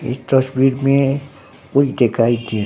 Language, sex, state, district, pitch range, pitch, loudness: Hindi, male, Bihar, Katihar, 125-135 Hz, 135 Hz, -17 LUFS